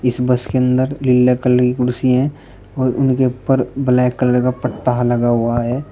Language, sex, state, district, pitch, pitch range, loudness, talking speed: Hindi, male, Uttar Pradesh, Shamli, 125 Hz, 125-130 Hz, -16 LUFS, 180 wpm